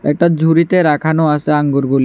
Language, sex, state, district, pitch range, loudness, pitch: Bengali, male, Tripura, West Tripura, 145-165 Hz, -13 LUFS, 150 Hz